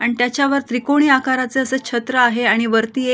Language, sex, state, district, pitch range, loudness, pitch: Marathi, female, Maharashtra, Solapur, 240-265 Hz, -17 LUFS, 255 Hz